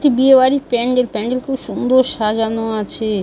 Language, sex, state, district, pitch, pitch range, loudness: Bengali, female, West Bengal, Dakshin Dinajpur, 245 Hz, 220-260 Hz, -16 LUFS